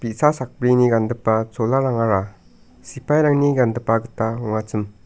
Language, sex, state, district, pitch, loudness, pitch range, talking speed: Garo, male, Meghalaya, South Garo Hills, 115 Hz, -19 LUFS, 110-130 Hz, 95 wpm